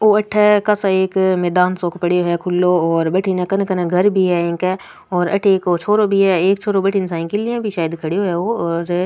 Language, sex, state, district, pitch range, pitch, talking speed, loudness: Rajasthani, female, Rajasthan, Nagaur, 175-200 Hz, 185 Hz, 220 wpm, -17 LUFS